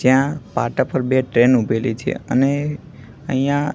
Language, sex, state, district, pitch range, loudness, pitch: Gujarati, male, Gujarat, Gandhinagar, 125-145 Hz, -19 LUFS, 130 Hz